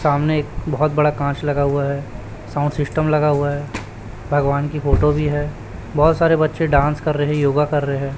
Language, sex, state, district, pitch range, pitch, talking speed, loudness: Hindi, male, Chhattisgarh, Raipur, 140-150 Hz, 145 Hz, 200 wpm, -19 LUFS